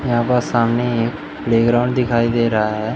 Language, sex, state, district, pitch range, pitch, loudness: Hindi, male, Madhya Pradesh, Umaria, 115-125 Hz, 120 Hz, -17 LUFS